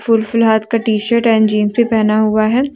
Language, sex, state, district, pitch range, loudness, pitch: Hindi, female, Jharkhand, Deoghar, 215-230 Hz, -13 LUFS, 225 Hz